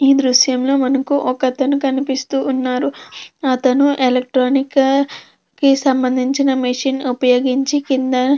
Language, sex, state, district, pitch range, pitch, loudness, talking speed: Telugu, female, Andhra Pradesh, Krishna, 255-275 Hz, 270 Hz, -16 LUFS, 105 wpm